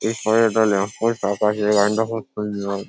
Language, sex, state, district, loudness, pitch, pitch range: Bengali, male, West Bengal, Paschim Medinipur, -20 LUFS, 105 Hz, 100-110 Hz